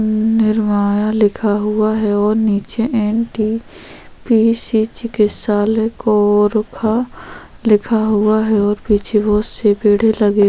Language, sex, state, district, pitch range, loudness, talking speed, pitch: Hindi, female, Chhattisgarh, Korba, 210-220 Hz, -15 LUFS, 95 wpm, 215 Hz